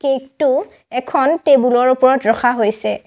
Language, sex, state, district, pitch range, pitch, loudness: Assamese, female, Assam, Sonitpur, 245-275 Hz, 265 Hz, -15 LUFS